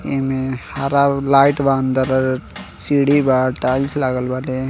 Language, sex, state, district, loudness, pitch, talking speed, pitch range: Bhojpuri, male, Uttar Pradesh, Deoria, -17 LUFS, 130 Hz, 130 wpm, 130-140 Hz